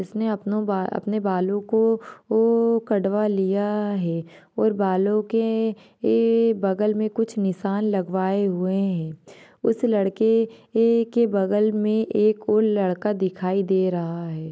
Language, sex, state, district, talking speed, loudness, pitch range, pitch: Hindi, female, Maharashtra, Nagpur, 130 wpm, -22 LUFS, 190-220 Hz, 210 Hz